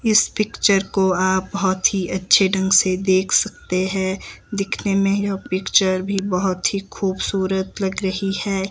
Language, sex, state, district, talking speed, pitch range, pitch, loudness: Hindi, female, Himachal Pradesh, Shimla, 160 wpm, 190-195 Hz, 190 Hz, -19 LUFS